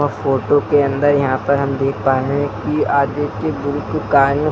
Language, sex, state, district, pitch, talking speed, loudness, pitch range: Hindi, male, Bihar, Muzaffarpur, 140 Hz, 170 wpm, -17 LUFS, 135-145 Hz